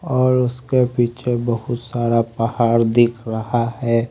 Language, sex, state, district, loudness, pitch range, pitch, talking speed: Hindi, male, Haryana, Rohtak, -19 LUFS, 115-125 Hz, 120 Hz, 130 wpm